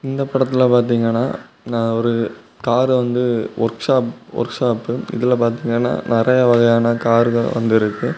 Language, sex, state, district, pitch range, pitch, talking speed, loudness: Tamil, male, Tamil Nadu, Kanyakumari, 115-125 Hz, 120 Hz, 125 wpm, -17 LUFS